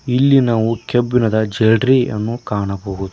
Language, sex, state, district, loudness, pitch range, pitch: Kannada, male, Karnataka, Koppal, -16 LUFS, 105-125 Hz, 115 Hz